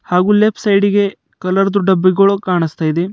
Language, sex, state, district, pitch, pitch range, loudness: Kannada, male, Karnataka, Bidar, 195 Hz, 180-200 Hz, -14 LUFS